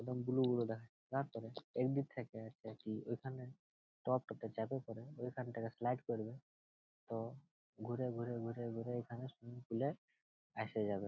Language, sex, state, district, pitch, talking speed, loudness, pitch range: Bengali, male, West Bengal, Jhargram, 120 Hz, 155 wpm, -43 LUFS, 115-125 Hz